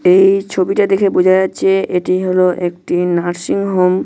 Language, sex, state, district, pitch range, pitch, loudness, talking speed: Bengali, male, West Bengal, Malda, 180-195 Hz, 185 Hz, -14 LUFS, 165 wpm